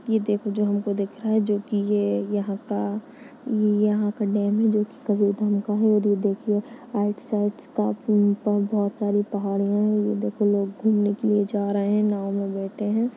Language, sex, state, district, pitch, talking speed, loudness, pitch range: Hindi, female, Chhattisgarh, Kabirdham, 205 Hz, 195 wpm, -24 LUFS, 205-210 Hz